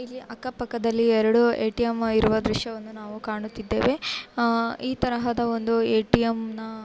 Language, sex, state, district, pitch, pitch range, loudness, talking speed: Kannada, female, Karnataka, Raichur, 230 Hz, 220-240 Hz, -24 LUFS, 165 wpm